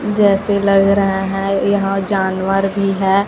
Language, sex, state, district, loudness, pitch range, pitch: Hindi, female, Chhattisgarh, Raipur, -15 LUFS, 195-200 Hz, 195 Hz